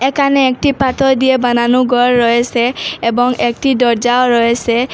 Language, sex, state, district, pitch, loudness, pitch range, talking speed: Bengali, female, Assam, Hailakandi, 245 Hz, -13 LUFS, 240-265 Hz, 135 wpm